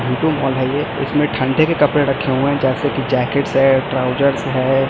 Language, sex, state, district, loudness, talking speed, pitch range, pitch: Hindi, male, Chhattisgarh, Raipur, -16 LUFS, 210 wpm, 130-145 Hz, 135 Hz